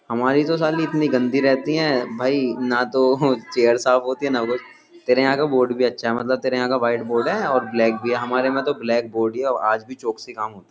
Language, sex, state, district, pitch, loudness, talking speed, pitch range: Hindi, male, Uttar Pradesh, Jyotiba Phule Nagar, 125 Hz, -20 LUFS, 270 wpm, 120-135 Hz